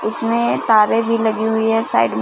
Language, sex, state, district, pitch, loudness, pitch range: Hindi, female, Punjab, Fazilka, 220 Hz, -16 LUFS, 215-230 Hz